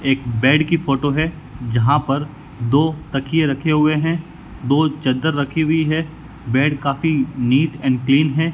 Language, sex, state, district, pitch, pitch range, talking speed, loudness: Hindi, male, Rajasthan, Bikaner, 145 Hz, 135-155 Hz, 160 wpm, -18 LUFS